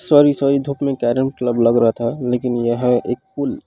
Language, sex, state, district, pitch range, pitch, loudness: Chhattisgarhi, female, Chhattisgarh, Rajnandgaon, 120-140 Hz, 125 Hz, -18 LUFS